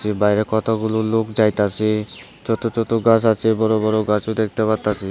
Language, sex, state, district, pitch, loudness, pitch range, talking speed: Bengali, male, Tripura, Unakoti, 110 Hz, -19 LUFS, 105-110 Hz, 165 wpm